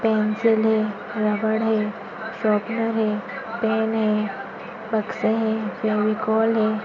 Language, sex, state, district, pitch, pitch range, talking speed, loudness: Hindi, female, Maharashtra, Nagpur, 220 Hz, 215-225 Hz, 105 wpm, -23 LUFS